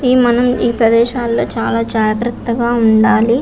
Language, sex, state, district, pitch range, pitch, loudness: Telugu, female, Andhra Pradesh, Visakhapatnam, 225-240 Hz, 235 Hz, -13 LUFS